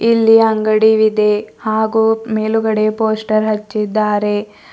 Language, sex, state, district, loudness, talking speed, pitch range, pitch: Kannada, female, Karnataka, Bidar, -14 LUFS, 75 wpm, 215-220 Hz, 215 Hz